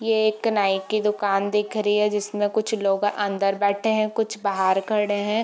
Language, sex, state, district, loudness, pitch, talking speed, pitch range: Hindi, female, Bihar, Gopalganj, -23 LUFS, 210 Hz, 200 wpm, 200-215 Hz